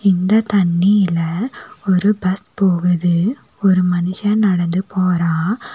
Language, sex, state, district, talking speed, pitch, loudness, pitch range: Tamil, female, Tamil Nadu, Nilgiris, 95 wpm, 185 Hz, -17 LUFS, 175-205 Hz